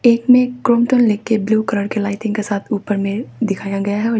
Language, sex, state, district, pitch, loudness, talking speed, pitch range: Hindi, female, Arunachal Pradesh, Papum Pare, 215 Hz, -17 LUFS, 270 wpm, 205-235 Hz